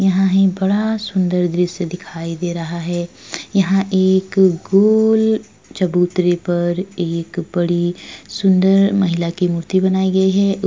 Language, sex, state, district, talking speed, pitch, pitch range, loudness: Hindi, female, Uttar Pradesh, Etah, 140 wpm, 185 Hz, 175-195 Hz, -17 LUFS